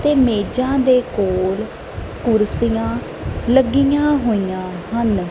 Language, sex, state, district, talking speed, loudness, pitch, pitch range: Punjabi, female, Punjab, Kapurthala, 90 wpm, -18 LUFS, 230 Hz, 200-265 Hz